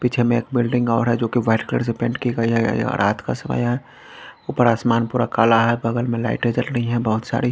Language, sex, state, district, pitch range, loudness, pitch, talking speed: Hindi, male, Bihar, Patna, 115-120 Hz, -20 LUFS, 120 Hz, 255 wpm